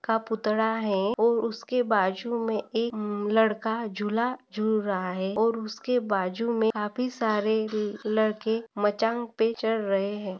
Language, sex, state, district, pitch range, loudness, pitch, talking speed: Hindi, female, Maharashtra, Aurangabad, 210-230 Hz, -27 LUFS, 220 Hz, 145 wpm